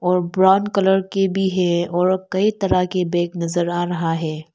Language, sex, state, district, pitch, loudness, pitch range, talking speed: Hindi, female, Arunachal Pradesh, Lower Dibang Valley, 180 Hz, -19 LUFS, 175-190 Hz, 195 wpm